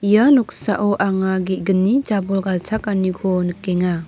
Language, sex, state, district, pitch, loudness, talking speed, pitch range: Garo, female, Meghalaya, North Garo Hills, 195 Hz, -17 LUFS, 105 wpm, 185-205 Hz